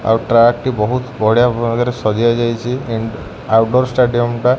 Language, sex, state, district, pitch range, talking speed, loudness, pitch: Odia, male, Odisha, Khordha, 115-125 Hz, 155 wpm, -15 LUFS, 120 Hz